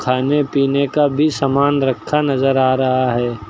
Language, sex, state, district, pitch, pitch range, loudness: Hindi, male, Uttar Pradesh, Lucknow, 135 Hz, 130-145 Hz, -16 LUFS